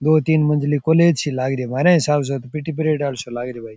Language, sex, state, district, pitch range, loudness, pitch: Rajasthani, male, Rajasthan, Churu, 130-155 Hz, -19 LUFS, 145 Hz